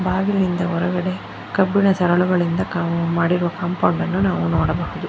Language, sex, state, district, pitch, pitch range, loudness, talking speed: Kannada, female, Karnataka, Bangalore, 180 Hz, 175-185 Hz, -19 LUFS, 105 wpm